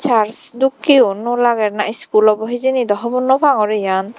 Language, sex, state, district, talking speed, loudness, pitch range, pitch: Chakma, female, Tripura, Dhalai, 185 wpm, -15 LUFS, 215-260 Hz, 235 Hz